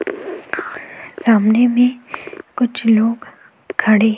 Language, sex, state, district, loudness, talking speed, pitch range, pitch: Hindi, female, Goa, North and South Goa, -16 LUFS, 100 wpm, 220-250 Hz, 240 Hz